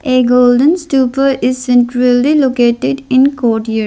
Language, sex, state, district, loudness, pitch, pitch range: English, female, Arunachal Pradesh, Lower Dibang Valley, -11 LUFS, 255 Hz, 245-275 Hz